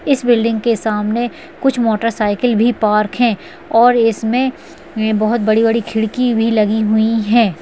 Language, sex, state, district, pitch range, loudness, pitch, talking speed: Hindi, female, Maharashtra, Sindhudurg, 220-240 Hz, -15 LUFS, 225 Hz, 155 wpm